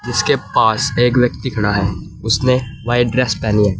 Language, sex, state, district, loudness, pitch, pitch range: Hindi, male, Uttar Pradesh, Saharanpur, -16 LUFS, 120 Hz, 105-125 Hz